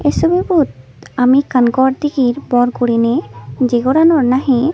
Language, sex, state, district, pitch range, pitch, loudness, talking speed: Chakma, female, Tripura, Unakoti, 240-290 Hz, 255 Hz, -14 LUFS, 140 wpm